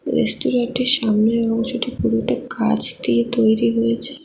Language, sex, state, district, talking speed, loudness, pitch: Bengali, female, West Bengal, Alipurduar, 115 wpm, -18 LUFS, 220 Hz